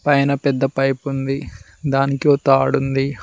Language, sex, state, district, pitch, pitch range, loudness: Telugu, male, Telangana, Mahabubabad, 135 Hz, 135-140 Hz, -18 LUFS